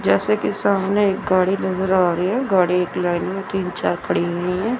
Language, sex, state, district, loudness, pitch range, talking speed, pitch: Hindi, female, Chandigarh, Chandigarh, -20 LUFS, 175-195 Hz, 225 wpm, 185 Hz